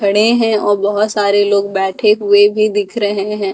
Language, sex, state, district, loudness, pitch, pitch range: Hindi, female, Delhi, New Delhi, -13 LUFS, 205 Hz, 200-210 Hz